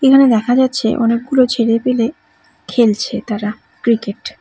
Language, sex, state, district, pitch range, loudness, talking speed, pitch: Bengali, female, West Bengal, Cooch Behar, 225-255 Hz, -15 LUFS, 120 wpm, 235 Hz